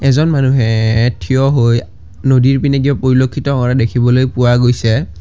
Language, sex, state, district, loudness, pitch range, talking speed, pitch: Assamese, male, Assam, Kamrup Metropolitan, -13 LUFS, 115-135 Hz, 140 wpm, 125 Hz